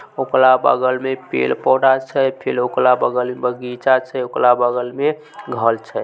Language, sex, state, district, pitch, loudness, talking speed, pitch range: Maithili, male, Bihar, Samastipur, 130 Hz, -17 LUFS, 160 wpm, 125-130 Hz